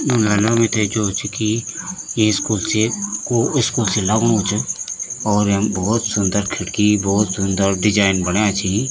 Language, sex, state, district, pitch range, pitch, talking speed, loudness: Garhwali, male, Uttarakhand, Tehri Garhwal, 100-115 Hz, 105 Hz, 160 wpm, -18 LUFS